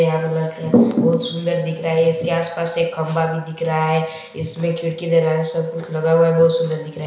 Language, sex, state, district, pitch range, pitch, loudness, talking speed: Hindi, male, Chhattisgarh, Balrampur, 160-170 Hz, 165 Hz, -19 LUFS, 230 wpm